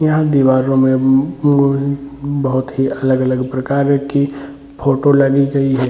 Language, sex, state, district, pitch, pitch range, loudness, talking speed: Hindi, male, Bihar, Jamui, 140 Hz, 130-140 Hz, -15 LUFS, 150 wpm